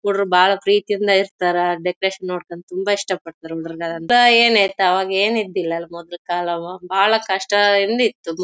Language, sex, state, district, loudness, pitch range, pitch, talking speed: Kannada, female, Karnataka, Bellary, -18 LUFS, 175-205 Hz, 190 Hz, 85 wpm